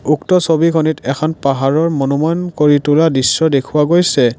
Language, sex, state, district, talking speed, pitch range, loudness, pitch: Assamese, male, Assam, Kamrup Metropolitan, 125 wpm, 140-165 Hz, -14 LUFS, 155 Hz